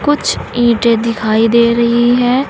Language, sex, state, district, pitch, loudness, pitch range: Hindi, female, Uttar Pradesh, Saharanpur, 235 Hz, -12 LUFS, 230-245 Hz